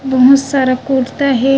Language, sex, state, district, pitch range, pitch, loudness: Chhattisgarhi, female, Chhattisgarh, Raigarh, 260-275 Hz, 270 Hz, -12 LUFS